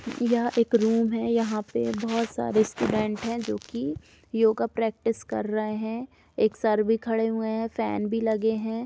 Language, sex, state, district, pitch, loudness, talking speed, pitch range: Hindi, female, Uttar Pradesh, Jalaun, 225 Hz, -26 LUFS, 190 wpm, 220-230 Hz